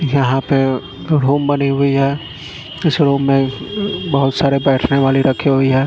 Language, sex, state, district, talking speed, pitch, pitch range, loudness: Hindi, male, Punjab, Fazilka, 165 wpm, 140 Hz, 135-145 Hz, -15 LUFS